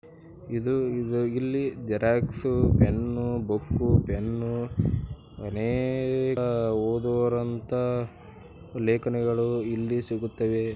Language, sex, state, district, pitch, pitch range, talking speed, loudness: Kannada, male, Karnataka, Bijapur, 120 Hz, 115-125 Hz, 60 wpm, -27 LUFS